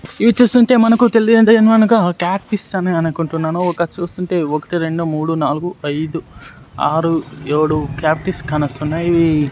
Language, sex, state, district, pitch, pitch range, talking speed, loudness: Telugu, male, Andhra Pradesh, Sri Satya Sai, 165 Hz, 155-195 Hz, 130 wpm, -15 LUFS